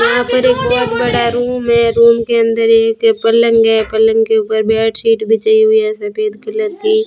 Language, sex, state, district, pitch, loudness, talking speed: Hindi, female, Rajasthan, Bikaner, 235 Hz, -12 LUFS, 195 wpm